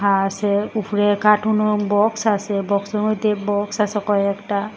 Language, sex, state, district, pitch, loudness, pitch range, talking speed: Bengali, female, Assam, Hailakandi, 205 Hz, -19 LUFS, 200-215 Hz, 140 wpm